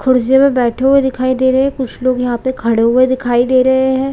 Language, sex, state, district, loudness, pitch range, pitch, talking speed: Hindi, female, Chhattisgarh, Balrampur, -13 LUFS, 245-265 Hz, 255 Hz, 275 wpm